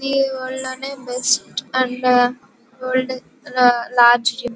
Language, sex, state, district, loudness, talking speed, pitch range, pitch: Telugu, female, Andhra Pradesh, Guntur, -18 LUFS, 130 wpm, 245-260 Hz, 255 Hz